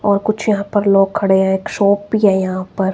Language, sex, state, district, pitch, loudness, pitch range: Hindi, female, Himachal Pradesh, Shimla, 200 Hz, -15 LUFS, 190-205 Hz